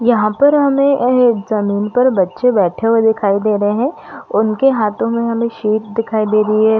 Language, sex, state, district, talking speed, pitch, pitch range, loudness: Hindi, female, Chhattisgarh, Raigarh, 205 wpm, 220 Hz, 215-245 Hz, -14 LUFS